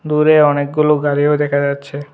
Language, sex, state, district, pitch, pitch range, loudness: Bengali, male, Tripura, West Tripura, 145 Hz, 145-150 Hz, -14 LUFS